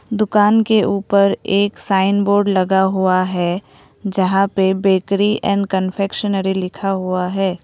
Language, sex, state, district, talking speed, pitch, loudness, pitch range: Hindi, female, Assam, Kamrup Metropolitan, 135 wpm, 195 Hz, -16 LUFS, 190-200 Hz